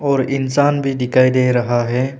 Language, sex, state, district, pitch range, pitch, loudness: Hindi, male, Arunachal Pradesh, Papum Pare, 125-135 Hz, 130 Hz, -16 LUFS